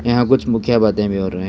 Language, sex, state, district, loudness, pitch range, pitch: Hindi, male, Karnataka, Bangalore, -16 LUFS, 100-120 Hz, 115 Hz